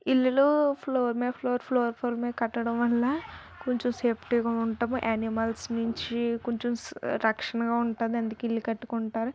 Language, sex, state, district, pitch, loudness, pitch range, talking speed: Telugu, female, Andhra Pradesh, Visakhapatnam, 235 Hz, -28 LUFS, 230-250 Hz, 70 wpm